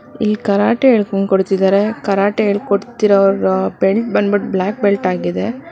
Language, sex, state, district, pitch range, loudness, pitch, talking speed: Kannada, female, Karnataka, Bangalore, 195-215 Hz, -15 LUFS, 200 Hz, 115 wpm